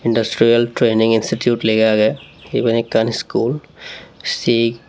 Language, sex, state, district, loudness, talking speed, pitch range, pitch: Chakma, male, Tripura, Unakoti, -16 LUFS, 110 wpm, 110-120 Hz, 115 Hz